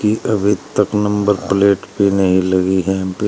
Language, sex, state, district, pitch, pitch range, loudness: Hindi, male, Uttar Pradesh, Shamli, 100 Hz, 95-105 Hz, -16 LUFS